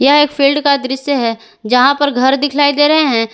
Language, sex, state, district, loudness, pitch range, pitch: Hindi, female, Jharkhand, Garhwa, -12 LUFS, 255-290 Hz, 280 Hz